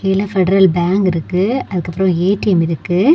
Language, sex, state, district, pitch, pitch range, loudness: Tamil, female, Tamil Nadu, Kanyakumari, 185 Hz, 175-195 Hz, -15 LUFS